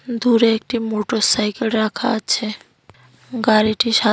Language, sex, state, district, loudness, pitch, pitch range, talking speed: Bengali, female, West Bengal, Cooch Behar, -18 LUFS, 225 Hz, 215-235 Hz, 100 wpm